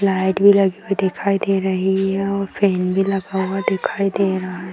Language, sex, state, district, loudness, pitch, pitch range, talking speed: Hindi, female, Bihar, Jamui, -19 LUFS, 195 Hz, 190-195 Hz, 215 wpm